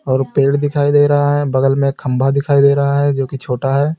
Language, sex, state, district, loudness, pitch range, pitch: Hindi, male, Uttar Pradesh, Lalitpur, -14 LUFS, 135-145 Hz, 140 Hz